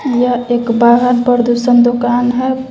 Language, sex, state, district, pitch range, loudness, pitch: Hindi, female, Bihar, West Champaran, 240-250 Hz, -12 LUFS, 245 Hz